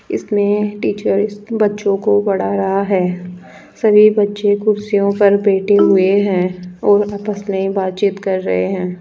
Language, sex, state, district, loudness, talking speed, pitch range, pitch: Hindi, female, Rajasthan, Jaipur, -15 LUFS, 140 wpm, 190-205 Hz, 200 Hz